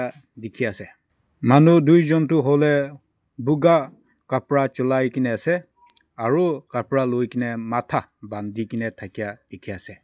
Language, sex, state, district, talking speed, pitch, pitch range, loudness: Nagamese, male, Nagaland, Dimapur, 110 wpm, 130 Hz, 115-150 Hz, -21 LUFS